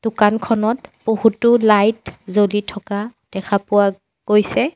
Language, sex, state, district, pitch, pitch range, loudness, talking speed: Assamese, female, Assam, Sonitpur, 210 Hz, 205-225 Hz, -17 LUFS, 100 wpm